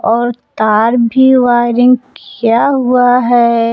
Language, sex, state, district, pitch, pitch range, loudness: Hindi, female, Jharkhand, Palamu, 240 Hz, 230-250 Hz, -10 LUFS